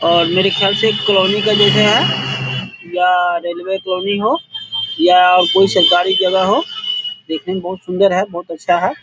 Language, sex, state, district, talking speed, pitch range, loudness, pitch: Hindi, male, Bihar, Saharsa, 175 wpm, 175-195 Hz, -14 LUFS, 185 Hz